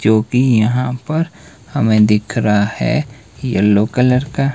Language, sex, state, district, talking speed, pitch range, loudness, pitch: Hindi, male, Himachal Pradesh, Shimla, 145 wpm, 110-135 Hz, -15 LUFS, 120 Hz